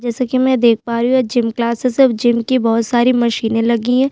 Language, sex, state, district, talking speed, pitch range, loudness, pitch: Hindi, female, Chhattisgarh, Sukma, 320 wpm, 235-255 Hz, -15 LUFS, 240 Hz